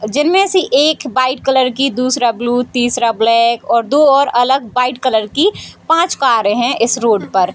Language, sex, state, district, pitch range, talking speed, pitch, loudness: Hindi, female, Bihar, Sitamarhi, 235-285 Hz, 175 wpm, 255 Hz, -13 LUFS